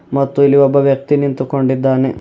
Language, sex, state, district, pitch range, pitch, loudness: Kannada, male, Karnataka, Bidar, 135-140 Hz, 140 Hz, -13 LUFS